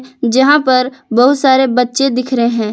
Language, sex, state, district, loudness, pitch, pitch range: Hindi, female, Jharkhand, Palamu, -12 LUFS, 255 Hz, 245-265 Hz